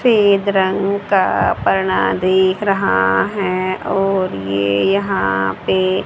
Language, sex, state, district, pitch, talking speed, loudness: Hindi, female, Haryana, Charkhi Dadri, 190 Hz, 100 wpm, -16 LUFS